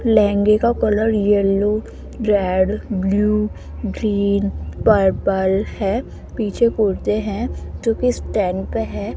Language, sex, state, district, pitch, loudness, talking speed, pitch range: Hindi, female, Rajasthan, Jaipur, 205 Hz, -19 LUFS, 105 wpm, 195-215 Hz